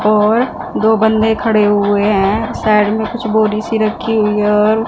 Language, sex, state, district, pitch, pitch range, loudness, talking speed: Hindi, female, Punjab, Fazilka, 215 Hz, 210-220 Hz, -14 LUFS, 170 wpm